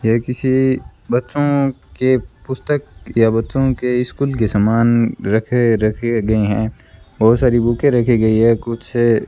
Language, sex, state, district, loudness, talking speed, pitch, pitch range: Hindi, female, Rajasthan, Bikaner, -16 LUFS, 150 wpm, 120 Hz, 110-130 Hz